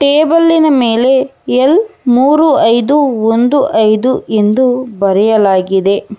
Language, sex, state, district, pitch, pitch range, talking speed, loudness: Kannada, female, Karnataka, Bangalore, 250 Hz, 220-285 Hz, 85 wpm, -10 LUFS